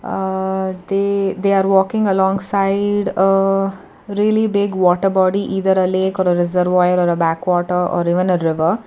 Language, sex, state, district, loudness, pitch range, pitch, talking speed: English, female, Karnataka, Bangalore, -17 LUFS, 180-195 Hz, 190 Hz, 160 wpm